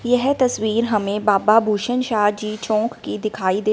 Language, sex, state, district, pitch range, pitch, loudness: Hindi, female, Punjab, Fazilka, 210-235 Hz, 215 Hz, -19 LUFS